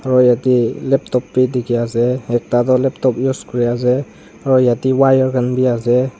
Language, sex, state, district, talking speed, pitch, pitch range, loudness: Nagamese, male, Nagaland, Dimapur, 175 wpm, 125 Hz, 120-130 Hz, -16 LUFS